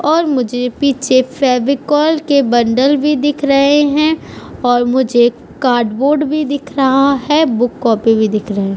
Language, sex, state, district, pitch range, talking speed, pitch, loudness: Hindi, female, Uttar Pradesh, Budaun, 245-290 Hz, 180 wpm, 270 Hz, -13 LUFS